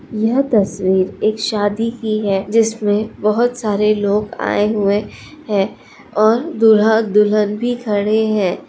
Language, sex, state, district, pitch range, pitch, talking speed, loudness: Hindi, male, Bihar, Supaul, 205-225 Hz, 215 Hz, 125 wpm, -16 LUFS